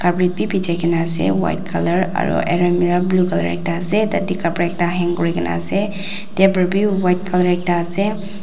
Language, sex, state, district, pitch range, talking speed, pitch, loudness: Nagamese, female, Nagaland, Dimapur, 170-195 Hz, 165 wpm, 180 Hz, -17 LUFS